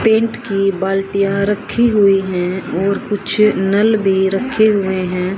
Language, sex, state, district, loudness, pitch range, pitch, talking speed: Hindi, female, Haryana, Rohtak, -15 LUFS, 190-210 Hz, 195 Hz, 145 wpm